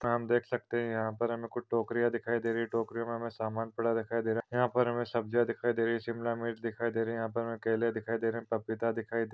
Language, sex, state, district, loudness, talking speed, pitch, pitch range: Hindi, male, Maharashtra, Pune, -33 LUFS, 295 wpm, 115 Hz, 115-120 Hz